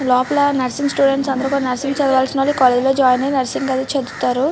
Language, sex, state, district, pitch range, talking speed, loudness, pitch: Telugu, female, Andhra Pradesh, Srikakulam, 255-275 Hz, 210 wpm, -17 LUFS, 270 Hz